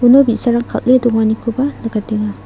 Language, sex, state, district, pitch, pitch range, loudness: Garo, female, Meghalaya, South Garo Hills, 235 Hz, 220-250 Hz, -15 LUFS